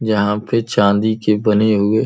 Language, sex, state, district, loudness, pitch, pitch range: Hindi, male, Uttar Pradesh, Gorakhpur, -16 LUFS, 105 Hz, 105-110 Hz